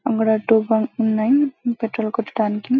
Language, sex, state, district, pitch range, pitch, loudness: Telugu, female, Telangana, Karimnagar, 220-255 Hz, 225 Hz, -20 LUFS